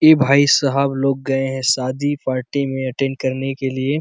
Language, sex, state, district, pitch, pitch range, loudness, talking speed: Hindi, male, Chhattisgarh, Bastar, 135 Hz, 130-140 Hz, -18 LUFS, 195 wpm